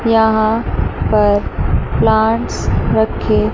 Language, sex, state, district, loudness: Hindi, male, Chandigarh, Chandigarh, -15 LUFS